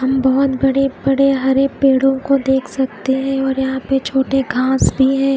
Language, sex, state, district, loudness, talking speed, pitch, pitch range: Hindi, female, Odisha, Khordha, -16 LUFS, 180 wpm, 270 Hz, 265-270 Hz